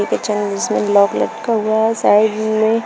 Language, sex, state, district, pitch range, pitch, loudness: Hindi, female, Uttar Pradesh, Shamli, 205-220 Hz, 215 Hz, -16 LUFS